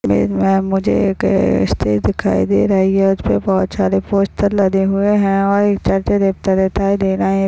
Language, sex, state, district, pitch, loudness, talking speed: Hindi, female, Chhattisgarh, Bastar, 190 Hz, -15 LUFS, 210 wpm